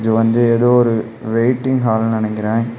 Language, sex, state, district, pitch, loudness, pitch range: Tamil, male, Tamil Nadu, Kanyakumari, 115 Hz, -16 LUFS, 110-120 Hz